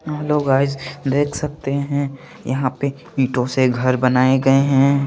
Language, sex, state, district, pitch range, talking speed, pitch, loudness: Hindi, male, Chandigarh, Chandigarh, 130-140 Hz, 155 wpm, 135 Hz, -19 LUFS